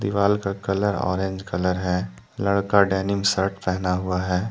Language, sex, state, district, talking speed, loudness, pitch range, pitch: Hindi, male, Jharkhand, Deoghar, 160 wpm, -23 LUFS, 95-100 Hz, 95 Hz